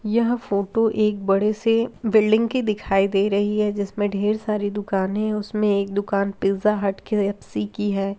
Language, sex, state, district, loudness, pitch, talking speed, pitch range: Hindi, female, Bihar, Begusarai, -22 LUFS, 205 Hz, 175 wpm, 200-215 Hz